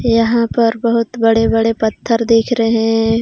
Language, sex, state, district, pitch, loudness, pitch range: Hindi, female, Jharkhand, Ranchi, 230 Hz, -14 LUFS, 225-230 Hz